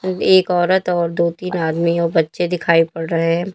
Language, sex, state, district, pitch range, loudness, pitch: Hindi, female, Uttar Pradesh, Lalitpur, 165-180 Hz, -17 LUFS, 170 Hz